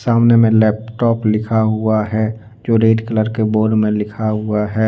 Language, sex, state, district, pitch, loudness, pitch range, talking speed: Hindi, male, Jharkhand, Deoghar, 110 Hz, -15 LUFS, 110-115 Hz, 185 wpm